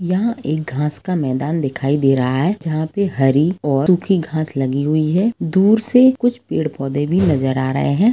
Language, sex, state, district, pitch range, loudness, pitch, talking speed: Hindi, female, Jharkhand, Jamtara, 140-190 Hz, -17 LUFS, 155 Hz, 220 wpm